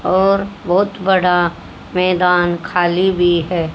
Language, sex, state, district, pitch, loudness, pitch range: Hindi, female, Haryana, Jhajjar, 180 Hz, -15 LUFS, 175-190 Hz